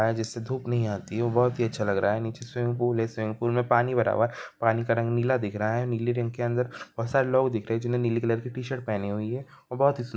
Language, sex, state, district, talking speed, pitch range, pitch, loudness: Hindi, male, Chhattisgarh, Bilaspur, 290 wpm, 115-125 Hz, 120 Hz, -27 LUFS